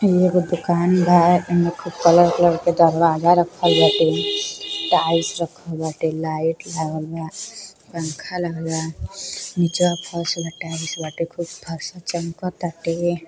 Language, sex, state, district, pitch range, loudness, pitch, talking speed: Bhojpuri, female, Uttar Pradesh, Deoria, 160-175 Hz, -20 LUFS, 170 Hz, 125 wpm